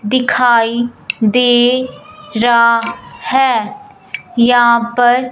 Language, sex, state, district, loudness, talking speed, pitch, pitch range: Hindi, male, Punjab, Fazilka, -12 LUFS, 70 wpm, 245 Hz, 235-255 Hz